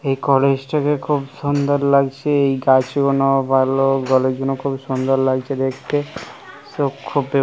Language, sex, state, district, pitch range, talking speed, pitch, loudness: Bengali, male, West Bengal, North 24 Parganas, 135-145 Hz, 120 wpm, 135 Hz, -18 LUFS